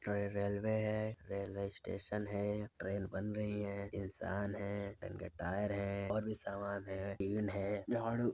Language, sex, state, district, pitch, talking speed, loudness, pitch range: Hindi, male, Uttar Pradesh, Varanasi, 100 Hz, 150 wpm, -40 LUFS, 100-105 Hz